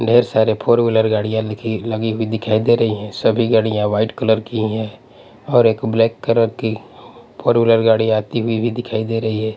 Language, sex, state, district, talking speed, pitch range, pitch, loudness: Hindi, male, Punjab, Pathankot, 205 wpm, 110-115 Hz, 110 Hz, -17 LUFS